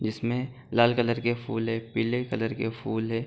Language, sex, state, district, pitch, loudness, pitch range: Hindi, male, Uttar Pradesh, Gorakhpur, 115 Hz, -28 LUFS, 115-120 Hz